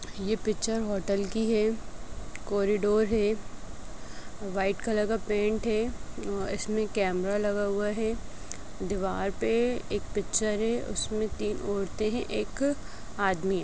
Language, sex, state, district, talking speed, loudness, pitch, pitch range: Hindi, male, Bihar, Darbhanga, 130 wpm, -29 LUFS, 210 Hz, 200-220 Hz